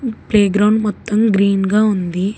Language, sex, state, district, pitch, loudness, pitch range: Telugu, female, Telangana, Hyderabad, 210 Hz, -15 LUFS, 200-215 Hz